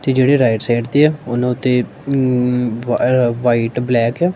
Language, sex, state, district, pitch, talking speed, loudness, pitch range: Punjabi, male, Punjab, Kapurthala, 125 Hz, 150 wpm, -16 LUFS, 120-130 Hz